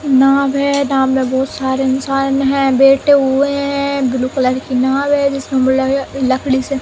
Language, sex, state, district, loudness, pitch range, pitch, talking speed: Hindi, female, Uttar Pradesh, Jalaun, -14 LUFS, 265-280 Hz, 270 Hz, 185 wpm